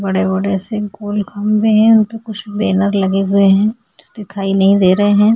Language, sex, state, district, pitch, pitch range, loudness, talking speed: Hindi, female, Maharashtra, Aurangabad, 205 Hz, 195-215 Hz, -14 LUFS, 200 wpm